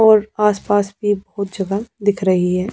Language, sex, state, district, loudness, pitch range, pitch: Hindi, female, Punjab, Pathankot, -18 LUFS, 195-210 Hz, 205 Hz